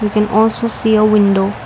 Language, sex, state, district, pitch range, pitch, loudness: English, female, Assam, Kamrup Metropolitan, 210-220 Hz, 215 Hz, -13 LUFS